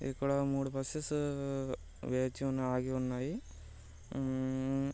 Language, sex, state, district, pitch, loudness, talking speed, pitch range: Telugu, male, Andhra Pradesh, Guntur, 135 Hz, -36 LUFS, 95 wpm, 130-140 Hz